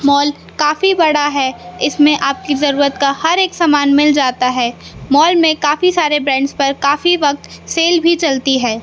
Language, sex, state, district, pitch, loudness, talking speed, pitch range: Hindi, male, Madhya Pradesh, Katni, 290 Hz, -13 LUFS, 175 wpm, 275-320 Hz